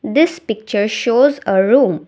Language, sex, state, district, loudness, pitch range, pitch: English, female, Assam, Kamrup Metropolitan, -15 LUFS, 215-285 Hz, 240 Hz